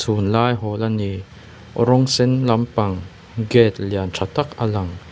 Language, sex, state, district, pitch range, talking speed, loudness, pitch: Mizo, male, Mizoram, Aizawl, 100-120 Hz, 150 wpm, -19 LUFS, 110 Hz